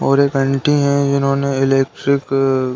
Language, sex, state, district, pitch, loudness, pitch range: Hindi, male, Uttar Pradesh, Deoria, 140 Hz, -16 LUFS, 135-140 Hz